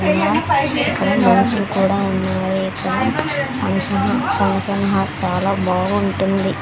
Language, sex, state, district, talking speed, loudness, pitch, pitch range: Telugu, female, Andhra Pradesh, Sri Satya Sai, 90 wpm, -18 LUFS, 195 Hz, 180-200 Hz